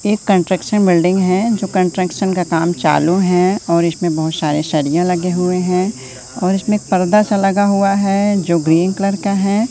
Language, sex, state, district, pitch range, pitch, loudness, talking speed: Hindi, male, Madhya Pradesh, Katni, 170-195 Hz, 185 Hz, -15 LUFS, 185 wpm